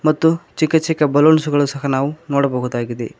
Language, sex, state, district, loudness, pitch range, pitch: Kannada, male, Karnataka, Koppal, -17 LUFS, 140-155 Hz, 145 Hz